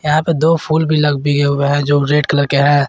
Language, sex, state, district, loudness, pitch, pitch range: Hindi, male, Jharkhand, Garhwa, -14 LUFS, 145 Hz, 145-155 Hz